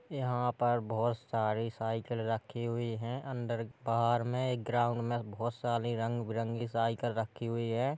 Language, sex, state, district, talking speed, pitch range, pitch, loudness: Hindi, male, Uttar Pradesh, Hamirpur, 160 wpm, 115-120 Hz, 120 Hz, -34 LUFS